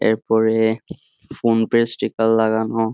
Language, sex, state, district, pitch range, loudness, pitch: Bengali, male, West Bengal, Jhargram, 110-115 Hz, -18 LUFS, 110 Hz